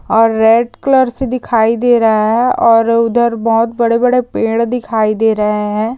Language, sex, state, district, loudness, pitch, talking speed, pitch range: Hindi, female, Bihar, Jamui, -12 LUFS, 230 Hz, 170 wpm, 225-240 Hz